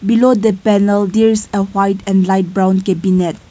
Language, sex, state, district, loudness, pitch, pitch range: English, female, Nagaland, Kohima, -14 LUFS, 195 Hz, 190-215 Hz